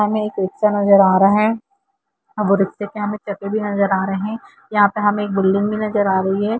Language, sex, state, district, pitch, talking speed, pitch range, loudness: Hindi, female, Jharkhand, Jamtara, 205 Hz, 255 wpm, 195-215 Hz, -18 LUFS